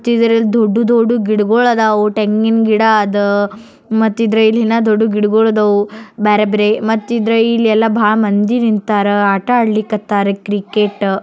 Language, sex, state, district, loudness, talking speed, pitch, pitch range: Kannada, male, Karnataka, Bijapur, -13 LUFS, 135 wpm, 215 Hz, 210-225 Hz